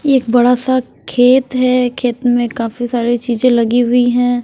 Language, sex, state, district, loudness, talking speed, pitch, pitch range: Hindi, female, Chhattisgarh, Raipur, -14 LUFS, 175 wpm, 245 Hz, 240-255 Hz